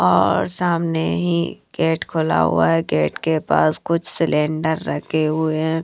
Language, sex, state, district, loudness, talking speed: Hindi, female, Punjab, Kapurthala, -19 LUFS, 155 wpm